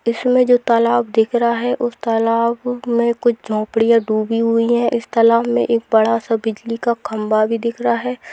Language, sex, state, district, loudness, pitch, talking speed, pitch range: Hindi, female, Bihar, Sitamarhi, -17 LUFS, 230 Hz, 195 wpm, 225-240 Hz